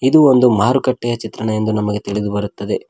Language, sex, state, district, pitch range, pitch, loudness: Kannada, male, Karnataka, Koppal, 105-125 Hz, 110 Hz, -16 LUFS